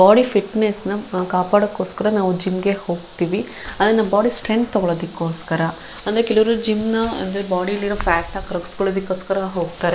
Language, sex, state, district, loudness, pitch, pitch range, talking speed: Kannada, female, Karnataka, Shimoga, -18 LUFS, 195 Hz, 180-210 Hz, 155 wpm